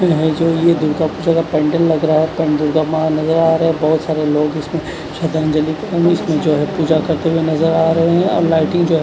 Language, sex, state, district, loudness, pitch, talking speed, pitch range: Hindi, male, Odisha, Khordha, -15 LUFS, 160 Hz, 220 wpm, 155-165 Hz